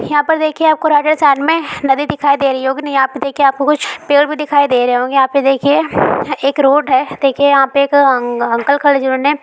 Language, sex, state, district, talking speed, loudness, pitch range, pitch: Hindi, female, West Bengal, Kolkata, 230 wpm, -13 LUFS, 270-295 Hz, 280 Hz